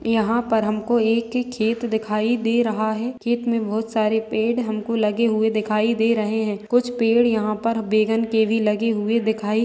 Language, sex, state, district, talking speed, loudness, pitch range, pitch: Hindi, female, Maharashtra, Solapur, 205 wpm, -21 LUFS, 215-230 Hz, 225 Hz